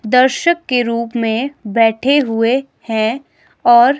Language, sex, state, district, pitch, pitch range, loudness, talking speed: Hindi, female, Himachal Pradesh, Shimla, 240 Hz, 230-275 Hz, -15 LUFS, 120 wpm